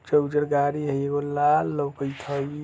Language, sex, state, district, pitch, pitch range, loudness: Bajjika, male, Bihar, Vaishali, 145 Hz, 140-150 Hz, -25 LUFS